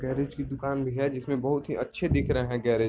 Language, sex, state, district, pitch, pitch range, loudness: Hindi, male, Bihar, Sitamarhi, 135 Hz, 130-140 Hz, -29 LUFS